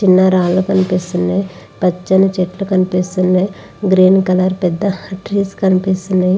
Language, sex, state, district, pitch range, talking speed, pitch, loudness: Telugu, female, Andhra Pradesh, Visakhapatnam, 185-190 Hz, 95 wpm, 185 Hz, -14 LUFS